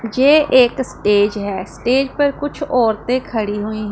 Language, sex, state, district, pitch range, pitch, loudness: Hindi, female, Punjab, Pathankot, 210-270 Hz, 245 Hz, -16 LUFS